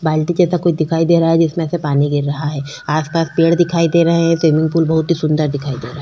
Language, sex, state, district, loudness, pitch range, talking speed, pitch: Hindi, female, Chhattisgarh, Korba, -15 LUFS, 150-170 Hz, 300 wpm, 165 Hz